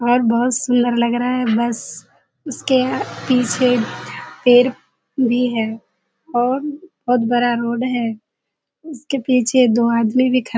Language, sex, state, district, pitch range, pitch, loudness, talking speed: Hindi, female, Bihar, Kishanganj, 235-255 Hz, 245 Hz, -17 LUFS, 135 wpm